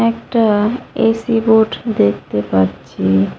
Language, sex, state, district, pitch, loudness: Bengali, female, West Bengal, Cooch Behar, 215 Hz, -15 LUFS